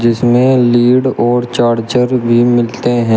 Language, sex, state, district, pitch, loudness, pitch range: Hindi, male, Uttar Pradesh, Shamli, 120 Hz, -11 LUFS, 120-125 Hz